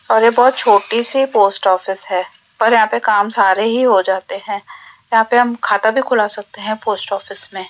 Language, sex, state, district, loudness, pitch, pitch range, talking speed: Hindi, female, Rajasthan, Jaipur, -15 LUFS, 215 Hz, 200-235 Hz, 225 wpm